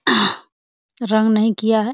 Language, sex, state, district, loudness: Hindi, female, Uttar Pradesh, Hamirpur, -16 LUFS